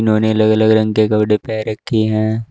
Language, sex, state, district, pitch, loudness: Hindi, male, Uttar Pradesh, Shamli, 110 Hz, -15 LUFS